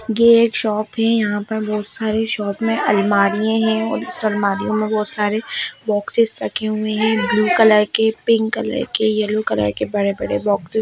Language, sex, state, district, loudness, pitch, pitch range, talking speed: Hindi, female, Bihar, Darbhanga, -18 LUFS, 215 Hz, 210-220 Hz, 190 wpm